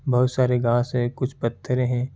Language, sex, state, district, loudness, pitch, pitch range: Hindi, male, Bihar, Kishanganj, -23 LUFS, 125 Hz, 120-130 Hz